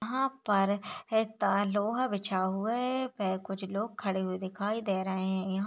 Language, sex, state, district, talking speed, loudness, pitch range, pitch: Hindi, female, Chhattisgarh, Raigarh, 190 wpm, -32 LUFS, 190-220 Hz, 200 Hz